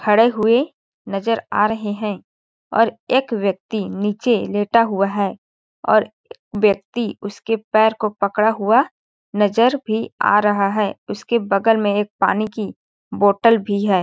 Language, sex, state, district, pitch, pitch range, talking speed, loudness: Hindi, female, Chhattisgarh, Balrampur, 210 Hz, 205-225 Hz, 145 wpm, -18 LUFS